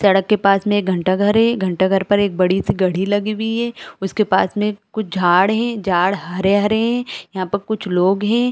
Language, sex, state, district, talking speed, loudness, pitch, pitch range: Hindi, female, Chhattisgarh, Bilaspur, 220 wpm, -17 LUFS, 200 Hz, 190-215 Hz